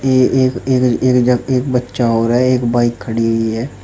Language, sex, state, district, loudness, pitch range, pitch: Hindi, male, Uttar Pradesh, Shamli, -15 LUFS, 115-130 Hz, 125 Hz